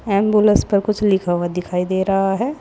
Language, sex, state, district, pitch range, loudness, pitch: Hindi, female, Uttar Pradesh, Saharanpur, 180-210 Hz, -18 LUFS, 195 Hz